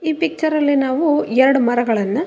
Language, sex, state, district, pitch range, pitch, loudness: Kannada, female, Karnataka, Raichur, 245-315 Hz, 285 Hz, -16 LUFS